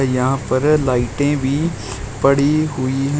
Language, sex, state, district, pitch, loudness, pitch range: Hindi, male, Uttar Pradesh, Shamli, 135 Hz, -18 LUFS, 130-145 Hz